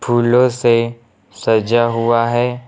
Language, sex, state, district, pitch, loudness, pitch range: Hindi, male, Uttar Pradesh, Lucknow, 120 Hz, -15 LUFS, 115-120 Hz